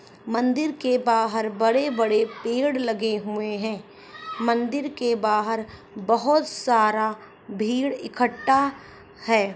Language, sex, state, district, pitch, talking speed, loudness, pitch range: Hindi, female, Rajasthan, Churu, 230 Hz, 105 wpm, -23 LUFS, 215-255 Hz